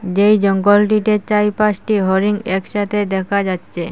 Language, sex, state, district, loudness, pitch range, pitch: Bengali, female, Assam, Hailakandi, -16 LUFS, 190-210 Hz, 205 Hz